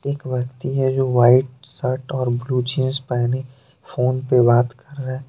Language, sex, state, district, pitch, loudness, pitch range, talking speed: Hindi, male, Jharkhand, Deoghar, 130 Hz, -20 LUFS, 125-135 Hz, 180 wpm